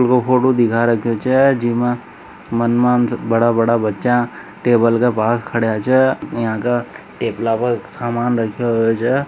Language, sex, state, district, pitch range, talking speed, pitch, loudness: Marwari, male, Rajasthan, Nagaur, 115-125 Hz, 150 wpm, 120 Hz, -17 LUFS